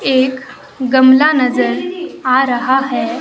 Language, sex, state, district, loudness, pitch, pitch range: Hindi, male, Himachal Pradesh, Shimla, -13 LUFS, 260 Hz, 255-270 Hz